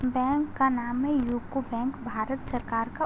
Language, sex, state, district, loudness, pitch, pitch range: Hindi, female, Uttar Pradesh, Gorakhpur, -29 LUFS, 255 Hz, 240-270 Hz